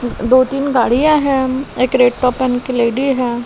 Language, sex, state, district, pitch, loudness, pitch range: Hindi, female, Delhi, New Delhi, 255 Hz, -14 LUFS, 245-270 Hz